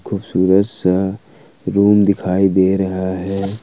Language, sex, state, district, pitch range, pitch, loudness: Hindi, male, Jharkhand, Ranchi, 95-100 Hz, 95 Hz, -16 LUFS